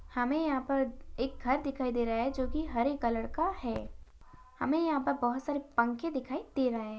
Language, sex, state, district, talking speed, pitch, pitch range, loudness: Hindi, female, Maharashtra, Sindhudurg, 215 wpm, 255 Hz, 235-280 Hz, -33 LUFS